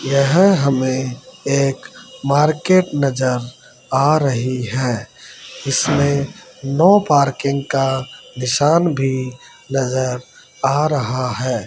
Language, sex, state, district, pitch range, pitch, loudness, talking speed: Hindi, male, Bihar, Gaya, 130-145 Hz, 135 Hz, -17 LUFS, 95 wpm